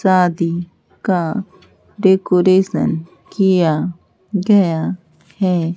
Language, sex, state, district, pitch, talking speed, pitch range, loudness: Hindi, female, Bihar, Katihar, 185 Hz, 60 wpm, 170-190 Hz, -17 LUFS